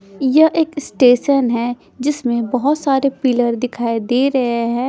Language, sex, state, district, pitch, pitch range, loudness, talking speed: Hindi, female, Punjab, Pathankot, 255 Hz, 240-275 Hz, -16 LUFS, 145 wpm